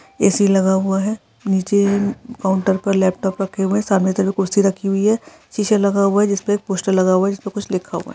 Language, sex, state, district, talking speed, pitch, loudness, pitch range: Hindi, female, Chhattisgarh, Sarguja, 235 wpm, 195 Hz, -18 LUFS, 190-205 Hz